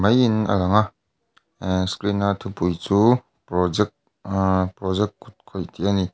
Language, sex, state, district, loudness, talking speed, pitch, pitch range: Mizo, male, Mizoram, Aizawl, -22 LUFS, 145 wpm, 100 Hz, 95-105 Hz